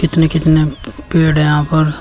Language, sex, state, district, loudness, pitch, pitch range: Hindi, male, Uttar Pradesh, Shamli, -13 LUFS, 155 Hz, 150-160 Hz